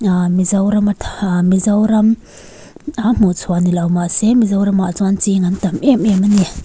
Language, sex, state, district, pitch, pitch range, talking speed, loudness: Mizo, female, Mizoram, Aizawl, 200 Hz, 185-210 Hz, 155 wpm, -14 LUFS